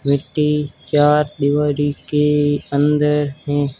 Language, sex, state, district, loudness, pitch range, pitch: Hindi, male, Rajasthan, Barmer, -17 LUFS, 145-150 Hz, 145 Hz